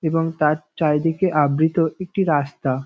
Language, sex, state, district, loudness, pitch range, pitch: Bengali, male, West Bengal, North 24 Parganas, -20 LUFS, 150-165 Hz, 160 Hz